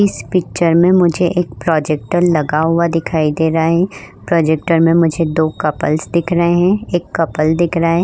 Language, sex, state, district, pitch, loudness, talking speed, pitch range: Hindi, female, Uttar Pradesh, Budaun, 165 Hz, -14 LUFS, 185 wpm, 160-175 Hz